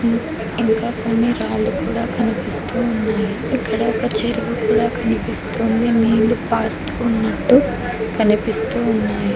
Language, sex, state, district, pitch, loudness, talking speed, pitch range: Telugu, female, Telangana, Mahabubabad, 230 Hz, -19 LUFS, 105 wpm, 220-235 Hz